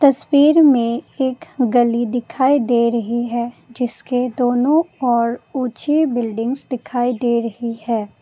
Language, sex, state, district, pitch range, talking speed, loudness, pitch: Hindi, female, Assam, Kamrup Metropolitan, 235-265 Hz, 125 wpm, -18 LUFS, 245 Hz